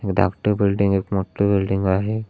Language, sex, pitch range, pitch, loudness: Marathi, male, 95-100 Hz, 100 Hz, -20 LUFS